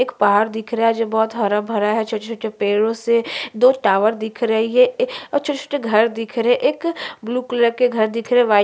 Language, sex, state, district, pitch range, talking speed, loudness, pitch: Hindi, female, Uttarakhand, Tehri Garhwal, 220-245 Hz, 230 wpm, -18 LUFS, 230 Hz